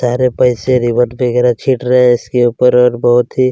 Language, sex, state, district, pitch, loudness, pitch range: Hindi, male, Chhattisgarh, Kabirdham, 125 Hz, -12 LUFS, 120-125 Hz